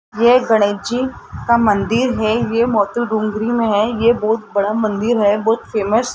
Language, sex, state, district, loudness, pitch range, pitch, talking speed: Hindi, female, Rajasthan, Jaipur, -16 LUFS, 210-235 Hz, 220 Hz, 185 wpm